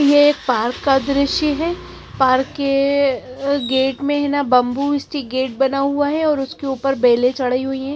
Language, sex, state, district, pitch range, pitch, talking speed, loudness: Hindi, female, Chandigarh, Chandigarh, 260-285 Hz, 275 Hz, 180 wpm, -18 LUFS